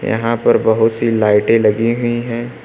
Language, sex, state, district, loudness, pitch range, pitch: Hindi, male, Uttar Pradesh, Lucknow, -15 LUFS, 110-120 Hz, 115 Hz